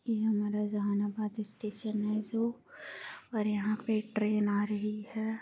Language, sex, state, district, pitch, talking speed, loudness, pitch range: Hindi, female, Bihar, Gaya, 215 Hz, 145 wpm, -33 LUFS, 210-220 Hz